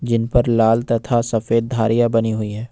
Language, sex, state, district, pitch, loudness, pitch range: Hindi, male, Jharkhand, Ranchi, 115 Hz, -18 LUFS, 110-120 Hz